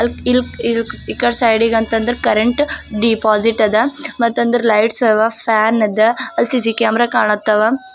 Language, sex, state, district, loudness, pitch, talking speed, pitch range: Kannada, female, Karnataka, Bidar, -15 LUFS, 230 Hz, 120 wpm, 220-240 Hz